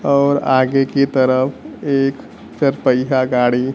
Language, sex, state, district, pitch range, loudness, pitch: Hindi, male, Bihar, Kaimur, 130-140 Hz, -16 LUFS, 135 Hz